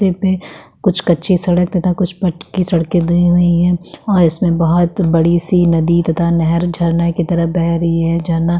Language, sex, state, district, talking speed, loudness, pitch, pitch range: Hindi, female, Uttarakhand, Tehri Garhwal, 190 wpm, -14 LUFS, 175 Hz, 170-180 Hz